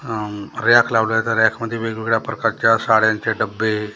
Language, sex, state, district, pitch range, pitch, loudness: Marathi, male, Maharashtra, Gondia, 110-115 Hz, 110 Hz, -18 LUFS